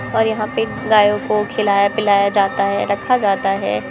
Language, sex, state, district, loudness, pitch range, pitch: Hindi, female, Bihar, Muzaffarpur, -16 LUFS, 200-220 Hz, 205 Hz